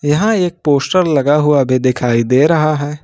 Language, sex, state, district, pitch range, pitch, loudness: Hindi, male, Jharkhand, Ranchi, 135-155 Hz, 145 Hz, -13 LUFS